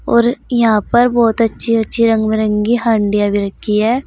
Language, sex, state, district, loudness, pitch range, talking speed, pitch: Hindi, female, Uttar Pradesh, Saharanpur, -14 LUFS, 210-235 Hz, 175 wpm, 225 Hz